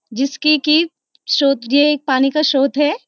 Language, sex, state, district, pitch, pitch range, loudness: Hindi, female, Uttarakhand, Uttarkashi, 290 Hz, 270-300 Hz, -15 LUFS